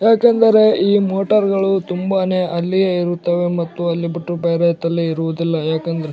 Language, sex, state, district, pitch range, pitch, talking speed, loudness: Kannada, male, Karnataka, Bellary, 170-195 Hz, 175 Hz, 135 wpm, -17 LUFS